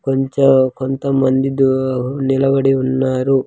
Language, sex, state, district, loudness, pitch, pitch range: Telugu, male, Andhra Pradesh, Sri Satya Sai, -16 LUFS, 135 Hz, 130-135 Hz